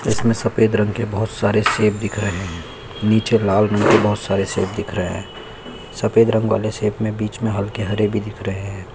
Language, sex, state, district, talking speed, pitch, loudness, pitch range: Hindi, male, Chhattisgarh, Sukma, 220 wpm, 105 Hz, -19 LUFS, 100-110 Hz